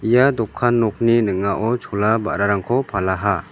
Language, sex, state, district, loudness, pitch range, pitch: Garo, male, Meghalaya, West Garo Hills, -19 LUFS, 100-120 Hz, 110 Hz